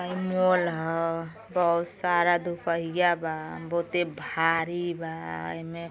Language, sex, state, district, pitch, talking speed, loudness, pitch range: Bhojpuri, female, Uttar Pradesh, Gorakhpur, 170 Hz, 120 wpm, -27 LUFS, 165-175 Hz